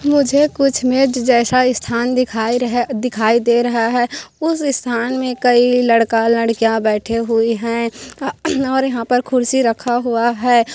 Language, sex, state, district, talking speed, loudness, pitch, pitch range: Hindi, female, Chhattisgarh, Korba, 150 wpm, -16 LUFS, 245 Hz, 230-255 Hz